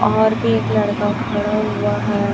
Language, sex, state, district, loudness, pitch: Hindi, male, Chhattisgarh, Raipur, -18 LUFS, 110 Hz